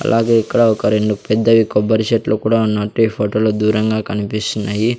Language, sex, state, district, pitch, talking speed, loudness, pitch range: Telugu, male, Andhra Pradesh, Sri Satya Sai, 110 Hz, 170 wpm, -16 LUFS, 105-115 Hz